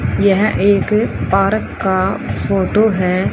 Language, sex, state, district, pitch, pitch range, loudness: Hindi, female, Haryana, Rohtak, 195 Hz, 190-210 Hz, -15 LUFS